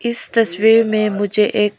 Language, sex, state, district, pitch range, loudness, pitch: Hindi, female, Arunachal Pradesh, Lower Dibang Valley, 210-225 Hz, -15 LUFS, 215 Hz